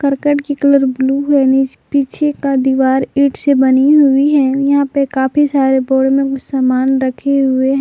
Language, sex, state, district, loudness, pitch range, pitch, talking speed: Hindi, female, Jharkhand, Palamu, -13 LUFS, 265-280 Hz, 270 Hz, 175 wpm